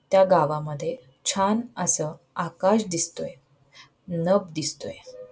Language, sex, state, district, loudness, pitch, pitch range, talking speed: Marathi, female, Maharashtra, Pune, -24 LUFS, 180 Hz, 155-200 Hz, 90 wpm